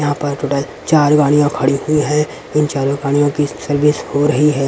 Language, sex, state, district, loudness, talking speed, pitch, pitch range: Hindi, male, Haryana, Rohtak, -15 LUFS, 205 wpm, 145 Hz, 140-150 Hz